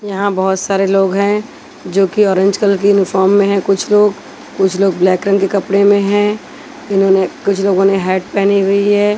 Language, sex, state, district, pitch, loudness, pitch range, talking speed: Hindi, female, Chhattisgarh, Raipur, 200 Hz, -13 LUFS, 195-205 Hz, 205 wpm